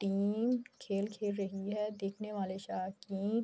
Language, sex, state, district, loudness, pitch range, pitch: Urdu, female, Andhra Pradesh, Anantapur, -37 LUFS, 195-210 Hz, 200 Hz